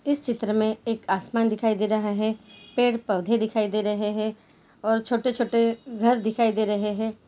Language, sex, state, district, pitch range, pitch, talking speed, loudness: Hindi, female, Bihar, Jahanabad, 215-230 Hz, 220 Hz, 190 wpm, -25 LUFS